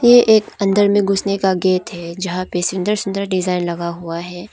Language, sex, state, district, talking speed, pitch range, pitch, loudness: Hindi, female, Arunachal Pradesh, Papum Pare, 210 wpm, 175-200 Hz, 185 Hz, -17 LUFS